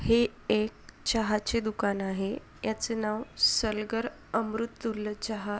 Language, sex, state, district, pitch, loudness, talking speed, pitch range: Marathi, female, Maharashtra, Sindhudurg, 220 Hz, -30 LUFS, 105 wpm, 210-225 Hz